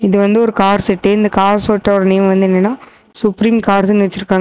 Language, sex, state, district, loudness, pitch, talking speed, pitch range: Tamil, female, Tamil Nadu, Namakkal, -12 LUFS, 200 Hz, 190 wpm, 195-215 Hz